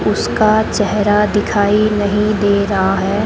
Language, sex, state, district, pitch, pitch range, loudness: Hindi, male, Rajasthan, Bikaner, 205 Hz, 205-215 Hz, -14 LUFS